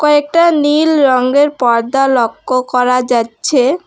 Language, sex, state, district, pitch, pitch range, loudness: Bengali, female, West Bengal, Alipurduar, 265 Hz, 250-295 Hz, -12 LUFS